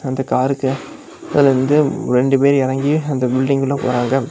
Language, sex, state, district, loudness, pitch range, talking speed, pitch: Tamil, male, Tamil Nadu, Kanyakumari, -16 LUFS, 130-140 Hz, 140 wpm, 135 Hz